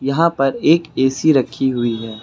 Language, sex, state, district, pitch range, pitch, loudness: Hindi, female, Uttar Pradesh, Lucknow, 125-155 Hz, 135 Hz, -17 LUFS